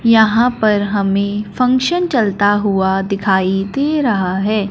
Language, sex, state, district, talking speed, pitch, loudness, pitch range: Hindi, female, Punjab, Fazilka, 125 wpm, 205 Hz, -15 LUFS, 195-240 Hz